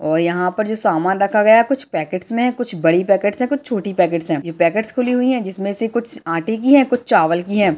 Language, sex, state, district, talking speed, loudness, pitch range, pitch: Hindi, female, Maharashtra, Dhule, 260 wpm, -17 LUFS, 170-235 Hz, 205 Hz